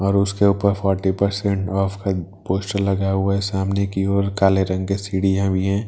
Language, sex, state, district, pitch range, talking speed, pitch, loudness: Hindi, male, Bihar, Katihar, 95-100 Hz, 205 wpm, 95 Hz, -20 LUFS